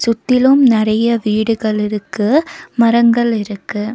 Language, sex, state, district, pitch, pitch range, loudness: Tamil, female, Tamil Nadu, Nilgiris, 225 Hz, 210-235 Hz, -14 LUFS